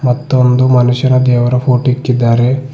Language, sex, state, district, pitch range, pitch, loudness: Kannada, male, Karnataka, Bidar, 125-130 Hz, 125 Hz, -11 LUFS